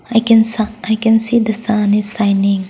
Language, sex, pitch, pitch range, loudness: English, female, 220 Hz, 205-225 Hz, -14 LUFS